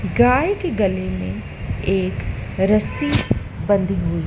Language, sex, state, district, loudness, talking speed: Hindi, female, Madhya Pradesh, Dhar, -20 LUFS, 110 wpm